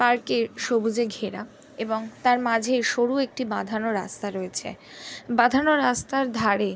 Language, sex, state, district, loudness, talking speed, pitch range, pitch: Bengali, female, West Bengal, Jhargram, -24 LUFS, 140 wpm, 220-250 Hz, 235 Hz